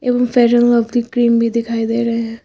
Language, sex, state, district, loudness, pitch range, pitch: Hindi, female, Uttar Pradesh, Lucknow, -15 LUFS, 230-240 Hz, 235 Hz